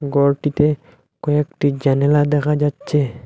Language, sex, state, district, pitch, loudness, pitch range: Bengali, male, Assam, Hailakandi, 145 Hz, -18 LUFS, 140-150 Hz